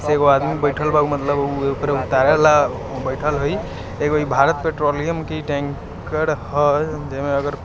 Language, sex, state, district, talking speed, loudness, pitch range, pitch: Hindi, male, Bihar, East Champaran, 150 wpm, -19 LUFS, 140-150 Hz, 145 Hz